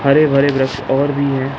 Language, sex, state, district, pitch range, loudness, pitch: Hindi, male, Bihar, Jamui, 135-140 Hz, -15 LUFS, 140 Hz